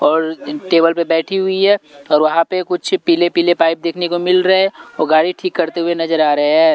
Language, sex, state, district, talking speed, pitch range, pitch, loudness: Hindi, male, Punjab, Pathankot, 240 wpm, 160-185 Hz, 170 Hz, -15 LUFS